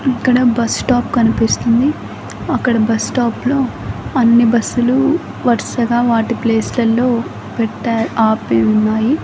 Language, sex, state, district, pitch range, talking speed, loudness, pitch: Telugu, female, Andhra Pradesh, Annamaya, 225-250 Hz, 115 wpm, -15 LUFS, 235 Hz